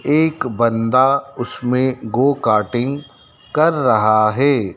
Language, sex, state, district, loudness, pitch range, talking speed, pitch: Hindi, male, Madhya Pradesh, Dhar, -17 LUFS, 115-140 Hz, 100 wpm, 130 Hz